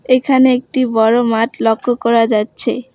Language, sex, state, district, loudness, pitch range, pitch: Bengali, female, West Bengal, Alipurduar, -14 LUFS, 225-255 Hz, 240 Hz